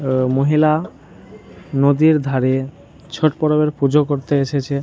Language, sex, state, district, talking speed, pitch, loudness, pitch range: Bengali, male, West Bengal, Jhargram, 125 wpm, 140 Hz, -17 LUFS, 135-150 Hz